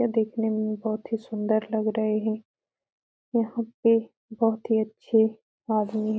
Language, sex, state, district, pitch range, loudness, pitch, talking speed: Hindi, female, Bihar, Araria, 215-225 Hz, -26 LUFS, 220 Hz, 165 wpm